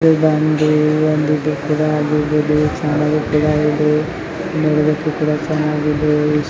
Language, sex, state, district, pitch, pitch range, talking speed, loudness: Kannada, male, Karnataka, Gulbarga, 150 Hz, 150-155 Hz, 90 wpm, -16 LUFS